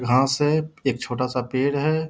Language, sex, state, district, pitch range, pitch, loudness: Hindi, male, Bihar, Darbhanga, 125-150 Hz, 135 Hz, -23 LUFS